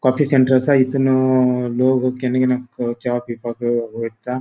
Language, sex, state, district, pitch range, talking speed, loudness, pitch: Konkani, male, Goa, North and South Goa, 120-130 Hz, 150 wpm, -18 LUFS, 125 Hz